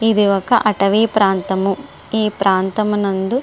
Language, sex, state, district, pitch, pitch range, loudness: Telugu, female, Andhra Pradesh, Srikakulam, 205 Hz, 195-215 Hz, -16 LUFS